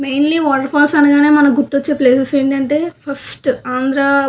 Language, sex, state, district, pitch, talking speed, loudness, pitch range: Telugu, female, Andhra Pradesh, Visakhapatnam, 280 Hz, 155 wpm, -13 LUFS, 270-295 Hz